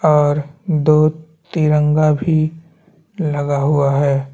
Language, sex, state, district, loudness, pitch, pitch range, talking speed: Hindi, male, Chhattisgarh, Bastar, -16 LUFS, 155 Hz, 145-160 Hz, 95 wpm